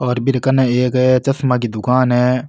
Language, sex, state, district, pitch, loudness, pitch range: Rajasthani, male, Rajasthan, Nagaur, 125 Hz, -15 LUFS, 125-130 Hz